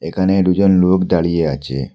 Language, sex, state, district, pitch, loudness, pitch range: Bengali, male, Assam, Hailakandi, 90 Hz, -15 LUFS, 80-95 Hz